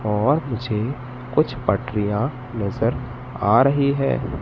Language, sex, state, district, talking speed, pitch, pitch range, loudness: Hindi, male, Madhya Pradesh, Katni, 110 wpm, 125 Hz, 110-135 Hz, -21 LUFS